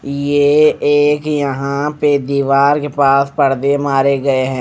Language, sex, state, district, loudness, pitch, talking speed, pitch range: Hindi, male, Punjab, Fazilka, -14 LUFS, 140 Hz, 145 wpm, 140-145 Hz